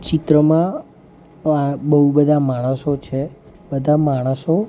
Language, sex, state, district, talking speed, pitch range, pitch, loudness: Gujarati, male, Gujarat, Gandhinagar, 100 wpm, 140-160 Hz, 150 Hz, -17 LUFS